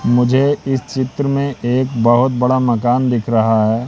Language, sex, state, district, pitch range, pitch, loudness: Hindi, male, Madhya Pradesh, Katni, 120-130 Hz, 125 Hz, -15 LUFS